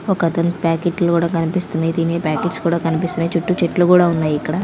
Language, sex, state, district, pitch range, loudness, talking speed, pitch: Telugu, female, Andhra Pradesh, Manyam, 165-175 Hz, -18 LUFS, 170 wpm, 170 Hz